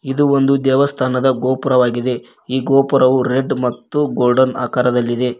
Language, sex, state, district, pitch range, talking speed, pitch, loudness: Kannada, male, Karnataka, Koppal, 125-135 Hz, 110 wpm, 130 Hz, -16 LUFS